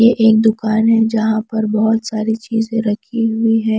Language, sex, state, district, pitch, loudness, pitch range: Hindi, female, Punjab, Pathankot, 220 Hz, -15 LUFS, 220-225 Hz